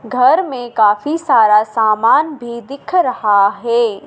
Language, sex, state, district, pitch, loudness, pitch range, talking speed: Hindi, female, Madhya Pradesh, Dhar, 235 Hz, -14 LUFS, 215-265 Hz, 130 wpm